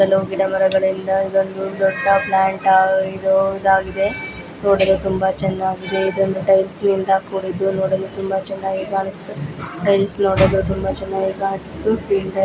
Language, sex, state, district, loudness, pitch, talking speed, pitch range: Kannada, female, Karnataka, Dakshina Kannada, -18 LUFS, 195 Hz, 120 wpm, 190-195 Hz